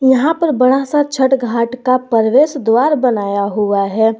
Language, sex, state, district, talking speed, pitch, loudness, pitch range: Hindi, female, Jharkhand, Garhwa, 170 wpm, 255 Hz, -14 LUFS, 225-270 Hz